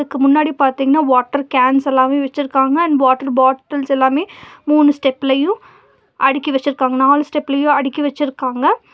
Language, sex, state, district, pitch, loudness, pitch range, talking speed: Tamil, female, Tamil Nadu, Nilgiris, 275 Hz, -15 LUFS, 265-290 Hz, 125 wpm